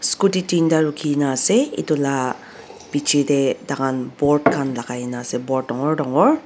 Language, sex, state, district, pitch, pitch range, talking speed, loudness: Nagamese, female, Nagaland, Dimapur, 140 Hz, 130-155 Hz, 185 wpm, -20 LUFS